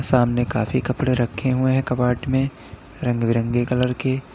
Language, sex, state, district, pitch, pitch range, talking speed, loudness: Hindi, male, Uttar Pradesh, Lalitpur, 125 Hz, 120-130 Hz, 165 wpm, -21 LUFS